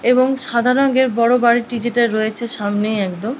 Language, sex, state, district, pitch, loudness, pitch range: Bengali, female, West Bengal, Paschim Medinipur, 235 Hz, -17 LUFS, 220-250 Hz